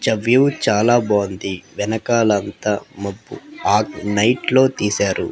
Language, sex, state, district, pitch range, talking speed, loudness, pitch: Telugu, female, Andhra Pradesh, Sri Satya Sai, 100-120 Hz, 125 wpm, -18 LUFS, 110 Hz